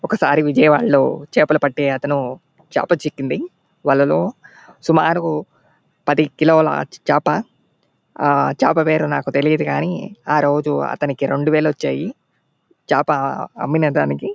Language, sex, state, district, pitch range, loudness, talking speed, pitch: Telugu, male, Andhra Pradesh, Anantapur, 140-160 Hz, -18 LUFS, 115 wpm, 150 Hz